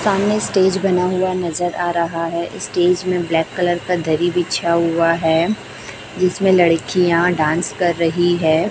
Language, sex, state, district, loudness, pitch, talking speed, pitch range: Hindi, female, Chhattisgarh, Raipur, -17 LUFS, 175 Hz, 160 wpm, 165-180 Hz